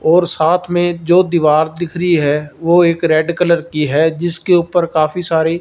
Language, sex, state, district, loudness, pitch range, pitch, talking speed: Hindi, male, Punjab, Fazilka, -14 LUFS, 160-175 Hz, 170 Hz, 180 wpm